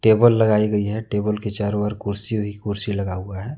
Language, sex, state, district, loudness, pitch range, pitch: Hindi, male, Jharkhand, Deoghar, -21 LUFS, 100-110 Hz, 105 Hz